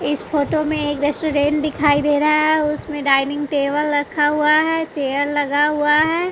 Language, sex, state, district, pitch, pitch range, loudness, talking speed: Hindi, female, Bihar, West Champaran, 295 Hz, 290-305 Hz, -18 LUFS, 180 wpm